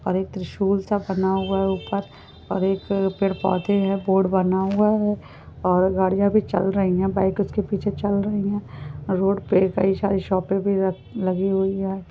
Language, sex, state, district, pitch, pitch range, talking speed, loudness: Hindi, female, Goa, North and South Goa, 195 Hz, 190-200 Hz, 195 wpm, -22 LUFS